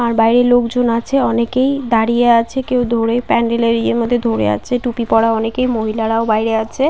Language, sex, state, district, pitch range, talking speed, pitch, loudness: Bengali, female, West Bengal, Paschim Medinipur, 225-245 Hz, 175 wpm, 235 Hz, -15 LUFS